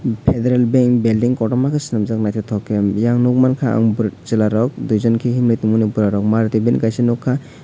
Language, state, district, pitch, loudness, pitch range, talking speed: Kokborok, Tripura, West Tripura, 115 Hz, -17 LUFS, 110-125 Hz, 190 wpm